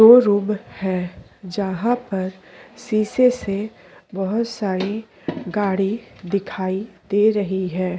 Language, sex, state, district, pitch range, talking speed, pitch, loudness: Hindi, female, Chhattisgarh, Korba, 190-215 Hz, 100 wpm, 200 Hz, -21 LUFS